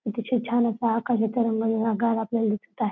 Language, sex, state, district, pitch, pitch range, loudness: Marathi, female, Maharashtra, Dhule, 225 Hz, 225-235 Hz, -25 LUFS